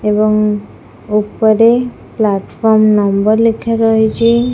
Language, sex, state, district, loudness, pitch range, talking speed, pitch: Odia, female, Odisha, Khordha, -12 LUFS, 210-230 Hz, 95 wpm, 220 Hz